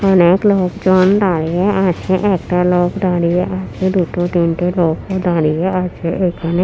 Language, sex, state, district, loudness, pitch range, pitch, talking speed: Bengali, female, West Bengal, Purulia, -15 LUFS, 175-185 Hz, 180 Hz, 125 wpm